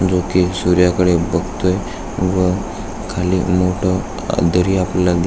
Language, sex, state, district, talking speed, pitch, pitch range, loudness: Marathi, male, Maharashtra, Aurangabad, 100 wpm, 90 Hz, 90-95 Hz, -17 LUFS